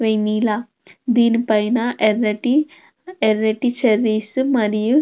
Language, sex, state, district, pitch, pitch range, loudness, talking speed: Telugu, female, Andhra Pradesh, Krishna, 225 Hz, 215-250 Hz, -18 LUFS, 95 wpm